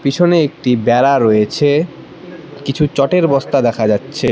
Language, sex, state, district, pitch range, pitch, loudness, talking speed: Bengali, male, West Bengal, Cooch Behar, 120-155 Hz, 140 Hz, -14 LUFS, 125 wpm